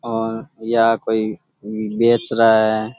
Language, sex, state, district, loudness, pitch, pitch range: Rajasthani, male, Rajasthan, Churu, -18 LUFS, 115 Hz, 110-115 Hz